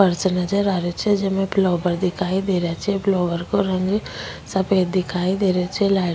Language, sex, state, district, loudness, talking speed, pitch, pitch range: Rajasthani, female, Rajasthan, Nagaur, -21 LUFS, 205 wpm, 185 Hz, 180-195 Hz